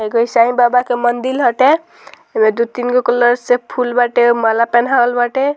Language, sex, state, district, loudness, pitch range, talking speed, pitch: Bhojpuri, female, Bihar, Muzaffarpur, -14 LUFS, 240-260 Hz, 185 wpm, 245 Hz